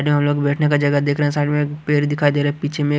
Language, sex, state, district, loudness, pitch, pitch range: Hindi, male, Punjab, Kapurthala, -18 LUFS, 145 Hz, 145-150 Hz